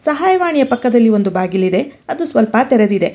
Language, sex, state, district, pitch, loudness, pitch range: Kannada, female, Karnataka, Bangalore, 240 Hz, -14 LUFS, 200-295 Hz